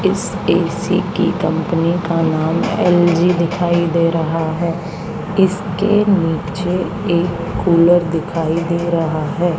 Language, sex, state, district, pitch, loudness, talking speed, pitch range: Hindi, female, Haryana, Charkhi Dadri, 170 Hz, -16 LUFS, 120 wpm, 165-180 Hz